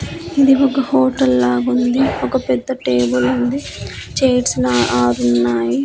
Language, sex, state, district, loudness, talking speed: Telugu, female, Andhra Pradesh, Annamaya, -16 LUFS, 100 wpm